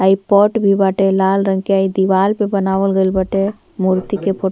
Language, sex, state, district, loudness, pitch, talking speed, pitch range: Bhojpuri, female, Uttar Pradesh, Ghazipur, -15 LUFS, 195 Hz, 250 wpm, 190-200 Hz